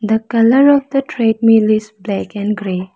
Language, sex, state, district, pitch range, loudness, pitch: English, female, Arunachal Pradesh, Lower Dibang Valley, 210-230 Hz, -14 LUFS, 220 Hz